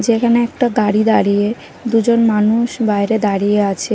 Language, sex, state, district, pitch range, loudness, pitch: Bengali, female, Odisha, Nuapada, 210-235 Hz, -15 LUFS, 220 Hz